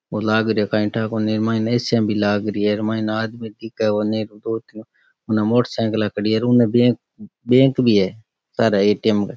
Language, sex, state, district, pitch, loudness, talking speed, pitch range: Rajasthani, male, Rajasthan, Nagaur, 110 Hz, -19 LUFS, 165 wpm, 105-115 Hz